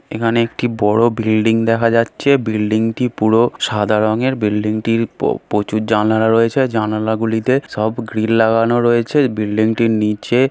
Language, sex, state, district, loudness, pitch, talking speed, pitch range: Bengali, male, West Bengal, Malda, -16 LUFS, 115 Hz, 150 wpm, 110-115 Hz